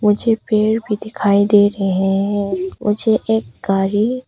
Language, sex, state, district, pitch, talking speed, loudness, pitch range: Hindi, female, Arunachal Pradesh, Papum Pare, 205 Hz, 140 wpm, -17 LUFS, 200-220 Hz